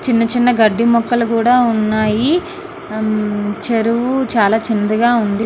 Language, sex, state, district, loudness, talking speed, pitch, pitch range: Telugu, female, Andhra Pradesh, Srikakulam, -15 LUFS, 120 wpm, 230 Hz, 215-245 Hz